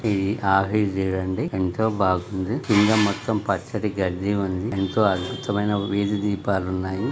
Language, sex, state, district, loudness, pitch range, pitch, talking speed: Telugu, male, Telangana, Nalgonda, -23 LUFS, 95-105 Hz, 100 Hz, 135 wpm